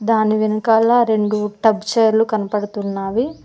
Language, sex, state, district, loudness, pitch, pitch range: Telugu, female, Telangana, Mahabubabad, -17 LUFS, 215 Hz, 210-225 Hz